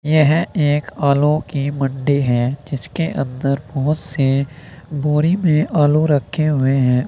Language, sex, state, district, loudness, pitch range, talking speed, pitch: Hindi, male, Uttar Pradesh, Saharanpur, -17 LUFS, 135-155 Hz, 135 wpm, 145 Hz